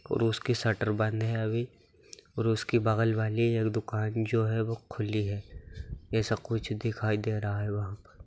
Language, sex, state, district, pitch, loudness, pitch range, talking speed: Hindi, male, Bihar, Jamui, 110 Hz, -30 LUFS, 105-115 Hz, 165 wpm